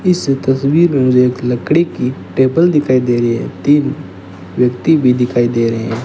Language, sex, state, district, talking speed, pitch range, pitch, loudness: Hindi, male, Rajasthan, Bikaner, 190 wpm, 120-145 Hz, 125 Hz, -13 LUFS